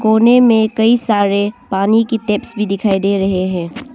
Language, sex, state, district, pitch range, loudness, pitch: Hindi, female, Arunachal Pradesh, Longding, 200-230 Hz, -14 LUFS, 210 Hz